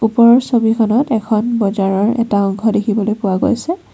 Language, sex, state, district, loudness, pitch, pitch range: Assamese, female, Assam, Kamrup Metropolitan, -14 LUFS, 225 Hz, 210-235 Hz